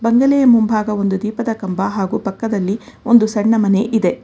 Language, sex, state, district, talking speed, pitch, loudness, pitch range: Kannada, female, Karnataka, Bangalore, 155 wpm, 215 Hz, -16 LUFS, 200-230 Hz